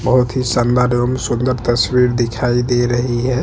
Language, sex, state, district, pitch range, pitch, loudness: Hindi, male, Chhattisgarh, Bastar, 120-125 Hz, 125 Hz, -16 LUFS